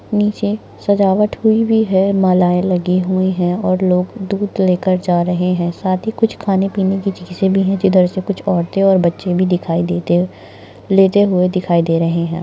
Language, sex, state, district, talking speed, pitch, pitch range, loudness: Hindi, female, Maharashtra, Nagpur, 190 wpm, 185 Hz, 180-195 Hz, -15 LUFS